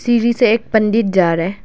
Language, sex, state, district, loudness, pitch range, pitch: Hindi, female, Arunachal Pradesh, Lower Dibang Valley, -15 LUFS, 190-235 Hz, 220 Hz